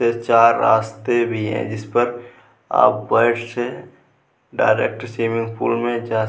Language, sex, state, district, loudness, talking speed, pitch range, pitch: Hindi, male, Bihar, Vaishali, -19 LUFS, 145 wpm, 110-120 Hz, 115 Hz